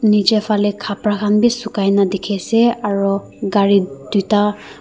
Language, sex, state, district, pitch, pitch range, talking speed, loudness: Nagamese, female, Nagaland, Dimapur, 205 Hz, 200-215 Hz, 135 wpm, -16 LUFS